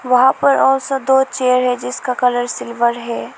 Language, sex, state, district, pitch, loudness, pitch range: Hindi, female, Arunachal Pradesh, Lower Dibang Valley, 250 Hz, -16 LUFS, 245-265 Hz